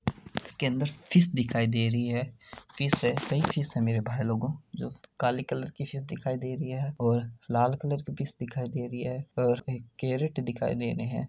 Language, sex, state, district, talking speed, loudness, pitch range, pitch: Hindi, male, Rajasthan, Nagaur, 175 wpm, -30 LUFS, 120-140 Hz, 130 Hz